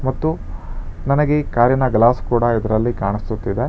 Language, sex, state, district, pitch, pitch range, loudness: Kannada, male, Karnataka, Bangalore, 120 Hz, 110-130 Hz, -18 LUFS